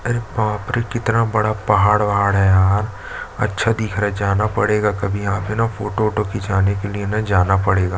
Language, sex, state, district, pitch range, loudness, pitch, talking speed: Hindi, male, Chhattisgarh, Jashpur, 100-110 Hz, -18 LUFS, 105 Hz, 205 wpm